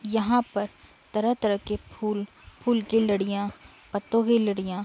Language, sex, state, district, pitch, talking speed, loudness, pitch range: Hindi, female, Uttar Pradesh, Budaun, 210 Hz, 150 wpm, -26 LUFS, 205-230 Hz